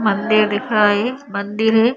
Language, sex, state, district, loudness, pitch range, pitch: Hindi, female, Uttar Pradesh, Budaun, -17 LUFS, 205-225 Hz, 215 Hz